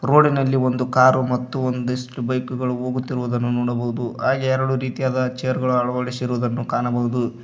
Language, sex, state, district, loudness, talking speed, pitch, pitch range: Kannada, male, Karnataka, Koppal, -21 LUFS, 135 wpm, 125 Hz, 120-130 Hz